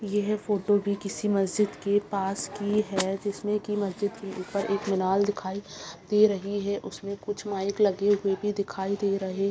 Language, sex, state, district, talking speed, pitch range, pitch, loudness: Hindi, female, Bihar, Saharsa, 190 wpm, 195-205 Hz, 200 Hz, -28 LUFS